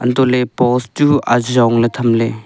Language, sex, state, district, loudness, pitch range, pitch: Wancho, male, Arunachal Pradesh, Longding, -14 LUFS, 115-125 Hz, 125 Hz